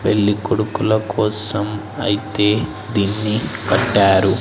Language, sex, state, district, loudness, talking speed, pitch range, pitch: Telugu, male, Andhra Pradesh, Sri Satya Sai, -18 LUFS, 80 wpm, 105-110 Hz, 105 Hz